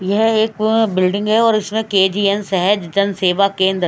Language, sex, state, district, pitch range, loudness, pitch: Hindi, female, Chhattisgarh, Raipur, 190-215 Hz, -16 LUFS, 200 Hz